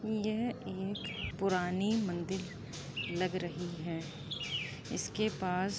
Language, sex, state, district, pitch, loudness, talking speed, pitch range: Hindi, female, Uttar Pradesh, Budaun, 180 Hz, -36 LUFS, 105 wpm, 165-195 Hz